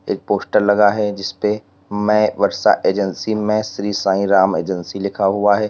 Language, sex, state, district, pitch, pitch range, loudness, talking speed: Hindi, male, Uttar Pradesh, Lalitpur, 100 Hz, 95-105 Hz, -17 LUFS, 170 wpm